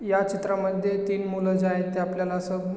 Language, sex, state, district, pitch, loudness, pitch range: Marathi, male, Maharashtra, Chandrapur, 190 Hz, -26 LUFS, 185-195 Hz